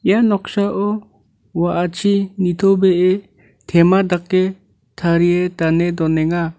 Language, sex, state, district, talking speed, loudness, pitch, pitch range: Garo, male, Meghalaya, North Garo Hills, 80 wpm, -17 LUFS, 180 Hz, 170-195 Hz